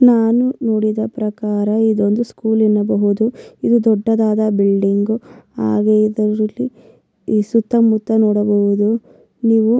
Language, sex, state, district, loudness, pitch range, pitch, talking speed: Kannada, female, Karnataka, Mysore, -16 LUFS, 210-225 Hz, 215 Hz, 100 wpm